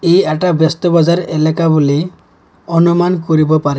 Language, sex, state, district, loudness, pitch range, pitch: Assamese, male, Assam, Kamrup Metropolitan, -13 LUFS, 155-175 Hz, 165 Hz